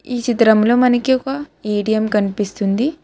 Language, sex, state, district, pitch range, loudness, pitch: Telugu, female, Telangana, Hyderabad, 210-255 Hz, -17 LUFS, 230 Hz